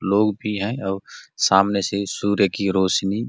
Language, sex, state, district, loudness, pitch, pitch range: Hindi, male, Chhattisgarh, Bastar, -21 LUFS, 100 Hz, 95-100 Hz